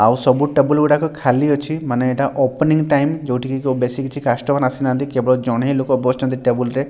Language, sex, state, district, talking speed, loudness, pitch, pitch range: Odia, male, Odisha, Sambalpur, 210 wpm, -17 LUFS, 135 Hz, 125-145 Hz